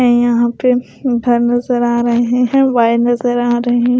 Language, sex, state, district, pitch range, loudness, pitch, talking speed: Hindi, female, Maharashtra, Gondia, 240-245 Hz, -14 LUFS, 240 Hz, 180 wpm